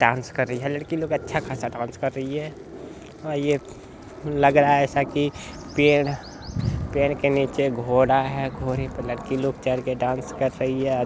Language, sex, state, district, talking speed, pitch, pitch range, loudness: Bhojpuri, male, Bihar, Saran, 180 wpm, 135 Hz, 130-145 Hz, -24 LUFS